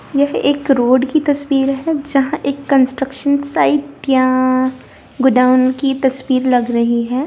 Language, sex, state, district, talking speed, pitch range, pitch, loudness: Hindi, female, Bihar, Darbhanga, 140 wpm, 255-280 Hz, 270 Hz, -15 LUFS